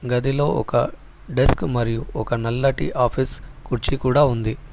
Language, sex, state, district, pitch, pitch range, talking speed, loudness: Telugu, male, Telangana, Hyderabad, 130 Hz, 120-140 Hz, 125 wpm, -21 LUFS